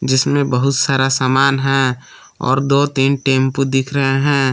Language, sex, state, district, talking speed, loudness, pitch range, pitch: Hindi, male, Jharkhand, Palamu, 160 wpm, -15 LUFS, 135-140 Hz, 135 Hz